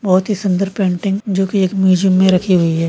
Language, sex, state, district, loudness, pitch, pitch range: Hindi, male, Maharashtra, Dhule, -15 LUFS, 190 Hz, 185-195 Hz